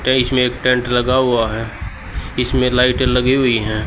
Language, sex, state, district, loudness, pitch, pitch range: Hindi, male, Haryana, Charkhi Dadri, -16 LUFS, 125 Hz, 110-125 Hz